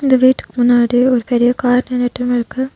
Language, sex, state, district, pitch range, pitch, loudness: Tamil, female, Tamil Nadu, Nilgiris, 245-255 Hz, 245 Hz, -14 LUFS